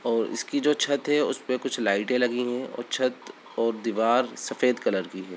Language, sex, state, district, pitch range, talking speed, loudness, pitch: Hindi, male, Bihar, Sitamarhi, 115-130 Hz, 200 wpm, -26 LUFS, 125 Hz